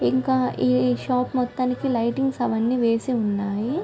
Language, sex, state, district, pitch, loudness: Telugu, female, Andhra Pradesh, Guntur, 230 Hz, -23 LUFS